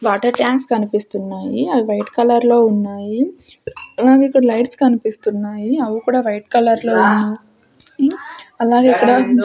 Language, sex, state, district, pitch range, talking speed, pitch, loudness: Telugu, female, Andhra Pradesh, Sri Satya Sai, 215-255 Hz, 135 wpm, 235 Hz, -16 LUFS